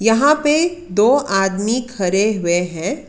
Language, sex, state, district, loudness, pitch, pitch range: Hindi, female, Karnataka, Bangalore, -17 LUFS, 220 Hz, 195-285 Hz